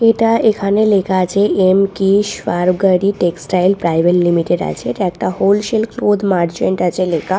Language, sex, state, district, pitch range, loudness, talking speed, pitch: Bengali, female, West Bengal, Purulia, 180-205 Hz, -14 LUFS, 145 wpm, 190 Hz